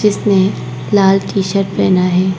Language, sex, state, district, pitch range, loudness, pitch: Hindi, female, Arunachal Pradesh, Papum Pare, 190-200 Hz, -13 LUFS, 195 Hz